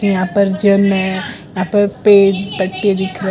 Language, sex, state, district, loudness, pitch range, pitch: Hindi, female, Gujarat, Valsad, -14 LUFS, 190-200 Hz, 195 Hz